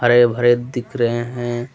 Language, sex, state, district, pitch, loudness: Hindi, male, Jharkhand, Deoghar, 120 Hz, -18 LUFS